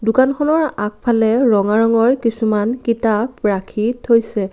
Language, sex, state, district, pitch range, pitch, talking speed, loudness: Assamese, female, Assam, Kamrup Metropolitan, 210-245 Hz, 230 Hz, 105 wpm, -16 LUFS